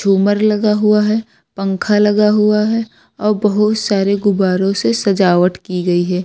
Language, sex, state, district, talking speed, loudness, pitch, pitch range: Hindi, female, Uttar Pradesh, Lucknow, 165 wpm, -14 LUFS, 210 Hz, 195-210 Hz